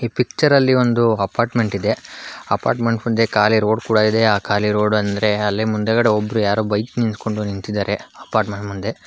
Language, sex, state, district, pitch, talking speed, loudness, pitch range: Kannada, male, Karnataka, Bangalore, 110 Hz, 160 wpm, -18 LUFS, 105-115 Hz